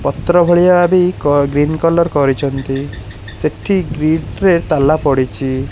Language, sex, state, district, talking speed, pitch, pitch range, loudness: Odia, male, Odisha, Khordha, 115 wpm, 145 Hz, 135-175 Hz, -14 LUFS